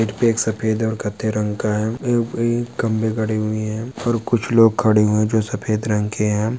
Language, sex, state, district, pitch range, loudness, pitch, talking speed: Hindi, male, Maharashtra, Dhule, 110-115 Hz, -19 LUFS, 110 Hz, 190 wpm